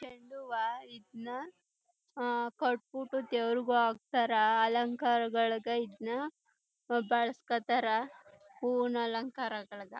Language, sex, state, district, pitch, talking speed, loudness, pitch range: Kannada, female, Karnataka, Chamarajanagar, 240 Hz, 70 wpm, -33 LUFS, 230-250 Hz